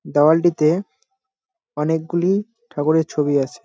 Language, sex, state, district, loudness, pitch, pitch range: Bengali, male, West Bengal, Jalpaiguri, -19 LUFS, 165 Hz, 155-225 Hz